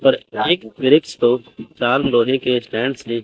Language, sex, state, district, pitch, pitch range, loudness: Hindi, male, Chandigarh, Chandigarh, 125 Hz, 120-135 Hz, -18 LUFS